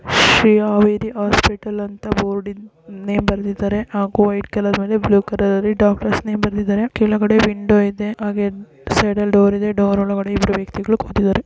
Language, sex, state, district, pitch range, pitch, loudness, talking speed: Kannada, female, Karnataka, Raichur, 200-210 Hz, 205 Hz, -17 LUFS, 160 wpm